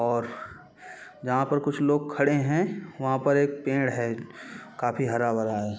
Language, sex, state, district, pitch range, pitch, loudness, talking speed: Hindi, male, Chhattisgarh, Bilaspur, 120-145 Hz, 135 Hz, -26 LUFS, 165 wpm